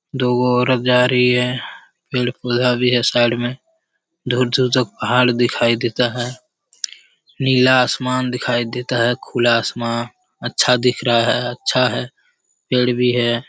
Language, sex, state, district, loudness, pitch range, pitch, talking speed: Hindi, male, Bihar, Jamui, -17 LUFS, 120-125 Hz, 125 Hz, 140 wpm